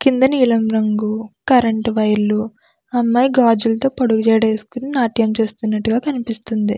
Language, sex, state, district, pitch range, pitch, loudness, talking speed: Telugu, female, Andhra Pradesh, Krishna, 220-250 Hz, 225 Hz, -17 LUFS, 125 wpm